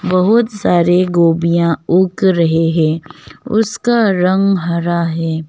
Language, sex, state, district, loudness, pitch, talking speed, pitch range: Hindi, female, Arunachal Pradesh, Longding, -14 LUFS, 175 Hz, 110 wpm, 165-190 Hz